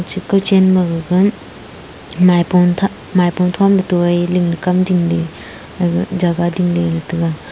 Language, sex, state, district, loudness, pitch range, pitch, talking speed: Wancho, female, Arunachal Pradesh, Longding, -15 LUFS, 175-185 Hz, 180 Hz, 120 wpm